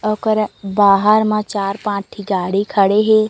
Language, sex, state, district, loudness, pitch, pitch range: Chhattisgarhi, female, Chhattisgarh, Raigarh, -16 LUFS, 205 Hz, 200-215 Hz